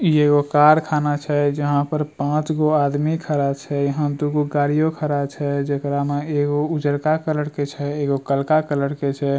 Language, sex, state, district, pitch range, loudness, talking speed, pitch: Angika, male, Bihar, Bhagalpur, 145-150 Hz, -20 LUFS, 180 wpm, 145 Hz